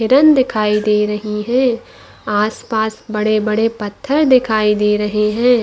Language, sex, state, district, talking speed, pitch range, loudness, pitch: Hindi, female, Chhattisgarh, Bastar, 170 wpm, 210-245 Hz, -15 LUFS, 215 Hz